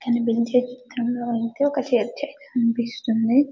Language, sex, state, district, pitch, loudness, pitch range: Telugu, female, Telangana, Karimnagar, 240 Hz, -23 LUFS, 235-260 Hz